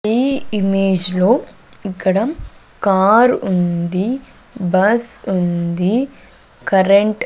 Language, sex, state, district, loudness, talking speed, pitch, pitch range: Telugu, female, Andhra Pradesh, Sri Satya Sai, -16 LUFS, 85 wpm, 195 Hz, 185-230 Hz